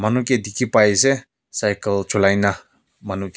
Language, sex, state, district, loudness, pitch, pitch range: Nagamese, male, Nagaland, Kohima, -19 LUFS, 105 Hz, 100-125 Hz